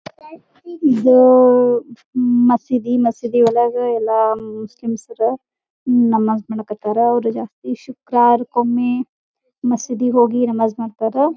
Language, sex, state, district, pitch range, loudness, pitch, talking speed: Kannada, female, Karnataka, Belgaum, 230-250 Hz, -16 LUFS, 240 Hz, 70 wpm